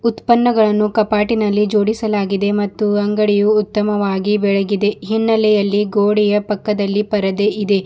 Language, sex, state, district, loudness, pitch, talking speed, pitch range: Kannada, female, Karnataka, Bidar, -16 LUFS, 210 Hz, 90 wpm, 205-215 Hz